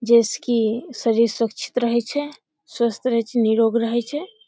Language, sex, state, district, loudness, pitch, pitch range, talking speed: Maithili, female, Bihar, Samastipur, -21 LUFS, 235 Hz, 230-250 Hz, 175 wpm